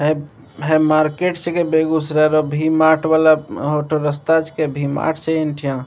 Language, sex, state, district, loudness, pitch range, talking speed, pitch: Maithili, male, Bihar, Begusarai, -17 LUFS, 150-160 Hz, 185 wpm, 155 Hz